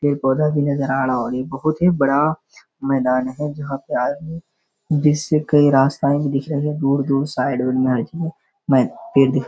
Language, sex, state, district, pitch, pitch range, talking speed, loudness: Hindi, male, Bihar, Kishanganj, 140 Hz, 135-150 Hz, 195 wpm, -19 LUFS